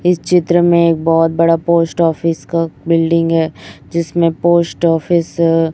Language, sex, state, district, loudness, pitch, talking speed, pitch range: Hindi, female, Chhattisgarh, Raipur, -14 LUFS, 165 Hz, 155 wpm, 165-170 Hz